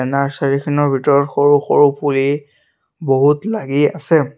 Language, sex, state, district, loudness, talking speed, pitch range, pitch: Assamese, male, Assam, Sonitpur, -15 LUFS, 125 wpm, 140-145 Hz, 145 Hz